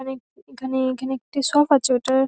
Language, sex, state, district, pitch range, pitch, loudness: Bengali, female, West Bengal, North 24 Parganas, 260-275 Hz, 265 Hz, -21 LUFS